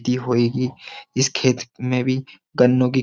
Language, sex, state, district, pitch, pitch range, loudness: Hindi, male, Uttar Pradesh, Jyotiba Phule Nagar, 125 Hz, 125-130 Hz, -20 LUFS